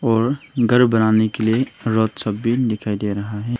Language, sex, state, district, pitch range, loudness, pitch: Hindi, male, Arunachal Pradesh, Longding, 110-120 Hz, -19 LUFS, 115 Hz